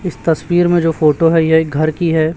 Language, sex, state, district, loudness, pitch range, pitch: Hindi, male, Chhattisgarh, Raipur, -14 LUFS, 155-170 Hz, 165 Hz